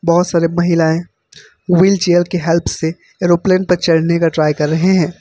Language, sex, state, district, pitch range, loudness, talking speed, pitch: Hindi, male, Uttar Pradesh, Lucknow, 165-180 Hz, -14 LUFS, 170 wpm, 170 Hz